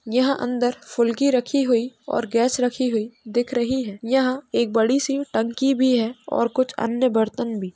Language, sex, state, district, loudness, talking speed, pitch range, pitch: Hindi, female, Uttar Pradesh, Jalaun, -22 LUFS, 185 wpm, 230-260 Hz, 245 Hz